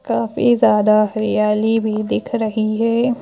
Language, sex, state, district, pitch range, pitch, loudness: Hindi, female, Madhya Pradesh, Bhopal, 215-230 Hz, 215 Hz, -17 LUFS